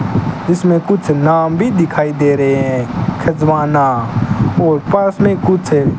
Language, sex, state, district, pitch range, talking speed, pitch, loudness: Hindi, male, Rajasthan, Bikaner, 140-175 Hz, 130 wpm, 155 Hz, -14 LUFS